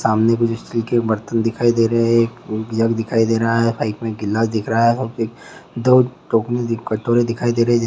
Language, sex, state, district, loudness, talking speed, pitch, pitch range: Hindi, male, Bihar, Begusarai, -18 LUFS, 190 wpm, 115 Hz, 115-120 Hz